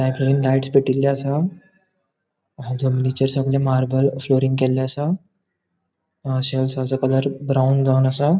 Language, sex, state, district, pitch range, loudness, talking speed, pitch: Konkani, male, Goa, North and South Goa, 130-140 Hz, -19 LUFS, 100 wpm, 135 Hz